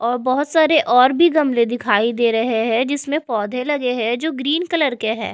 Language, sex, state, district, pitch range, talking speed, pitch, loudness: Hindi, female, Bihar, Patna, 230-295 Hz, 215 wpm, 250 Hz, -18 LUFS